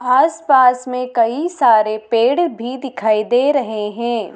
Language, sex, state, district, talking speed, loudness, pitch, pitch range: Hindi, female, Madhya Pradesh, Dhar, 150 wpm, -16 LUFS, 245 Hz, 220-265 Hz